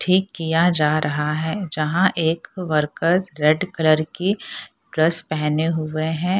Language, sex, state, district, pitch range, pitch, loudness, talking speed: Hindi, female, Bihar, Purnia, 155-180 Hz, 160 Hz, -20 LUFS, 140 wpm